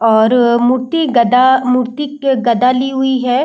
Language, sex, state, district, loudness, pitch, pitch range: Hindi, female, Bihar, Saran, -13 LUFS, 250 Hz, 240-265 Hz